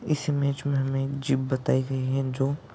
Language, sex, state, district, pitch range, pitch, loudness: Hindi, male, Rajasthan, Churu, 130-140 Hz, 135 Hz, -27 LUFS